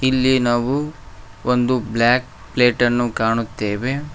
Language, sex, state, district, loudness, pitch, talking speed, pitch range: Kannada, male, Karnataka, Koppal, -19 LUFS, 120 Hz, 85 wpm, 115-130 Hz